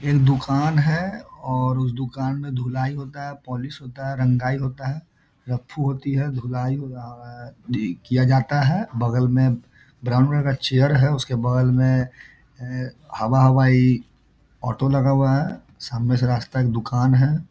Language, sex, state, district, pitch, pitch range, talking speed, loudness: Hindi, male, Bihar, Muzaffarpur, 130 Hz, 125-140 Hz, 165 wpm, -21 LUFS